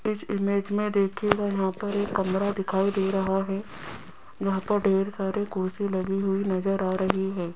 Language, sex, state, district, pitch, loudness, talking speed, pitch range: Hindi, female, Rajasthan, Jaipur, 195 Hz, -26 LUFS, 180 wpm, 190-200 Hz